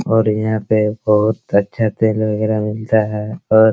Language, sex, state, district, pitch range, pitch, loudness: Hindi, male, Bihar, Araria, 105-110 Hz, 110 Hz, -17 LUFS